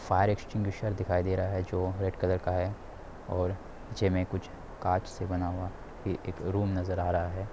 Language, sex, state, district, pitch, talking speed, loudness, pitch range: Hindi, male, Bihar, Darbhanga, 95 Hz, 190 wpm, -32 LUFS, 90-95 Hz